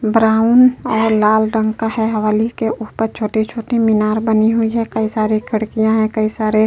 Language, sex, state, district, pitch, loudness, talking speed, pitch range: Hindi, female, Uttar Pradesh, Jyotiba Phule Nagar, 220 Hz, -16 LUFS, 190 wpm, 215-225 Hz